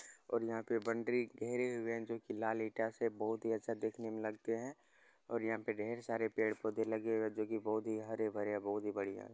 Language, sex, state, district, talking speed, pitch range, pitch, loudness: Hindi, male, Bihar, Gopalganj, 240 wpm, 110-115 Hz, 110 Hz, -40 LUFS